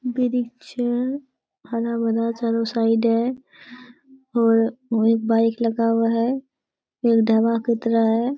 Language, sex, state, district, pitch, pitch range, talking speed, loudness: Hindi, female, Bihar, Bhagalpur, 230 Hz, 230-250 Hz, 120 wpm, -21 LUFS